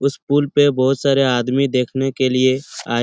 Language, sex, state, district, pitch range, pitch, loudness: Hindi, male, Bihar, Lakhisarai, 130-140 Hz, 135 Hz, -17 LUFS